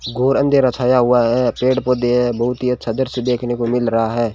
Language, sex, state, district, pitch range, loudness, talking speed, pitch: Hindi, male, Rajasthan, Bikaner, 120-125 Hz, -17 LUFS, 235 wpm, 125 Hz